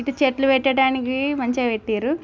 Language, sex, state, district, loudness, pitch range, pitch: Telugu, female, Telangana, Nalgonda, -20 LUFS, 250-275 Hz, 265 Hz